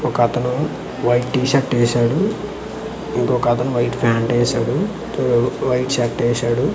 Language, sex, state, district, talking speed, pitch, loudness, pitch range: Telugu, male, Andhra Pradesh, Manyam, 105 wpm, 120 Hz, -19 LUFS, 120-125 Hz